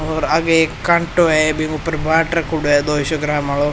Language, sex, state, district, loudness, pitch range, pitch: Rajasthani, male, Rajasthan, Churu, -16 LUFS, 150-165 Hz, 155 Hz